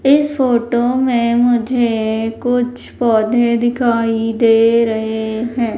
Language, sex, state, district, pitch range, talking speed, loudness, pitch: Hindi, female, Madhya Pradesh, Umaria, 225-245 Hz, 105 wpm, -15 LUFS, 235 Hz